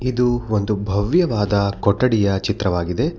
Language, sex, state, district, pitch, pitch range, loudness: Kannada, male, Karnataka, Bangalore, 105 Hz, 100-125 Hz, -19 LUFS